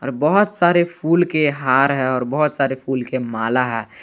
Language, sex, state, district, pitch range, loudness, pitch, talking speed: Hindi, male, Jharkhand, Garhwa, 130-155 Hz, -18 LUFS, 135 Hz, 195 wpm